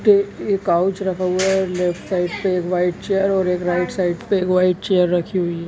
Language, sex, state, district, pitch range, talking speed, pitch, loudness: Hindi, female, Chhattisgarh, Raigarh, 180-190 Hz, 255 wpm, 185 Hz, -19 LUFS